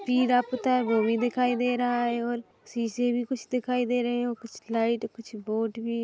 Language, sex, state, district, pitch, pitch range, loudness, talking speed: Hindi, female, Chhattisgarh, Bilaspur, 240 Hz, 230-245 Hz, -27 LUFS, 230 wpm